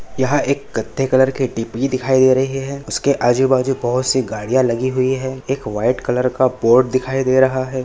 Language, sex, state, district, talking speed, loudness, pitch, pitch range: Hindi, male, Maharashtra, Nagpur, 205 wpm, -17 LUFS, 130 Hz, 125-130 Hz